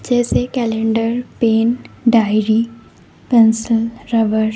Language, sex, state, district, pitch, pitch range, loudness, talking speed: Hindi, female, Bihar, Lakhisarai, 230 Hz, 220-235 Hz, -16 LUFS, 80 wpm